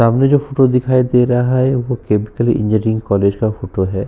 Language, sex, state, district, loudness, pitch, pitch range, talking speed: Hindi, male, Uttar Pradesh, Jyotiba Phule Nagar, -15 LUFS, 120 Hz, 105-130 Hz, 205 wpm